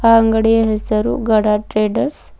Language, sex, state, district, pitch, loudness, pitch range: Kannada, female, Karnataka, Bidar, 220 Hz, -15 LUFS, 215-225 Hz